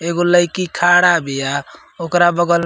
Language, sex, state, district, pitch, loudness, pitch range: Bhojpuri, male, Uttar Pradesh, Ghazipur, 175 Hz, -15 LUFS, 165-175 Hz